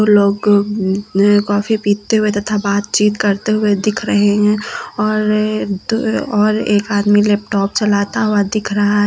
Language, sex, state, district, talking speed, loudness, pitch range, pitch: Hindi, female, Uttar Pradesh, Lucknow, 150 wpm, -15 LUFS, 205-215 Hz, 205 Hz